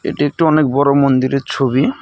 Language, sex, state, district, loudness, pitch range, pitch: Bengali, male, West Bengal, Cooch Behar, -14 LUFS, 135-145 Hz, 140 Hz